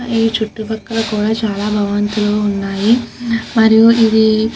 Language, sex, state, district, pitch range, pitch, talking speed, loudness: Telugu, female, Andhra Pradesh, Krishna, 210-225 Hz, 220 Hz, 130 wpm, -14 LUFS